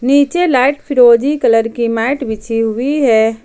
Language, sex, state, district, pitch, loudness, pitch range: Hindi, female, Jharkhand, Ranchi, 240 Hz, -13 LUFS, 225-280 Hz